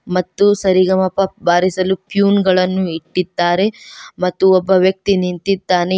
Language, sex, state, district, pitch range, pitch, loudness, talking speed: Kannada, female, Karnataka, Koppal, 180-195 Hz, 185 Hz, -15 LUFS, 100 wpm